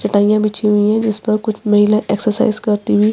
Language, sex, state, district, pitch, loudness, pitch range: Hindi, female, Chhattisgarh, Bastar, 210 Hz, -15 LUFS, 210-215 Hz